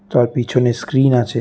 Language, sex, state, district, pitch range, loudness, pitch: Bengali, male, Tripura, West Tripura, 120-135 Hz, -16 LUFS, 125 Hz